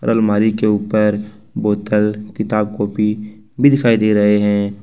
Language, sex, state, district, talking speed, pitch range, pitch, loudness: Hindi, male, Jharkhand, Ranchi, 135 wpm, 105-110 Hz, 105 Hz, -16 LUFS